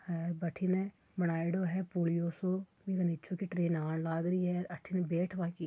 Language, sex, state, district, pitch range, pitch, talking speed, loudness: Marwari, female, Rajasthan, Churu, 170-185 Hz, 175 Hz, 180 wpm, -35 LUFS